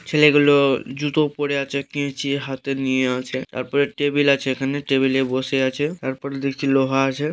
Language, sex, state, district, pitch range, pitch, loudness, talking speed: Bengali, male, West Bengal, Dakshin Dinajpur, 135-145 Hz, 140 Hz, -20 LUFS, 165 wpm